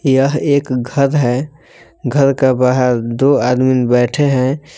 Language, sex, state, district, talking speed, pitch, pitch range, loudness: Hindi, male, Jharkhand, Palamu, 140 wpm, 135 Hz, 125-140 Hz, -14 LUFS